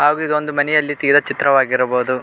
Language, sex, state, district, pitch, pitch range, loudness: Kannada, male, Karnataka, Koppal, 145 Hz, 130-150 Hz, -16 LUFS